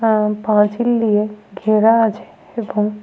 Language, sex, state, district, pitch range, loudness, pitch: Bengali, female, Jharkhand, Sahebganj, 210-225 Hz, -16 LUFS, 215 Hz